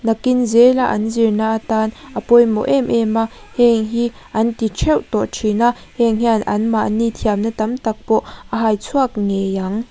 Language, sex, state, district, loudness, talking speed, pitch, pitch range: Mizo, female, Mizoram, Aizawl, -17 LUFS, 175 wpm, 225 Hz, 215-235 Hz